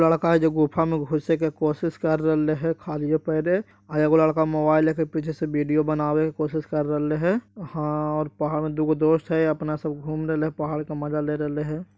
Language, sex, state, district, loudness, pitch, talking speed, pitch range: Magahi, male, Bihar, Jahanabad, -24 LUFS, 155 Hz, 235 wpm, 150-160 Hz